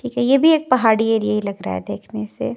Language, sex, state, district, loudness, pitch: Hindi, female, Himachal Pradesh, Shimla, -18 LUFS, 220 Hz